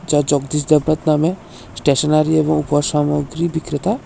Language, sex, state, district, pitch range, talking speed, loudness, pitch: Bengali, male, Tripura, West Tripura, 145-160 Hz, 90 wpm, -17 LUFS, 150 Hz